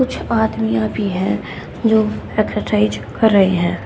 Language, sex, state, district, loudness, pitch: Hindi, female, Haryana, Rohtak, -17 LUFS, 180 Hz